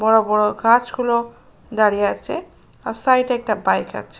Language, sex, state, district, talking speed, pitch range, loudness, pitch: Bengali, female, West Bengal, Jalpaiguri, 185 wpm, 210-240 Hz, -19 LUFS, 225 Hz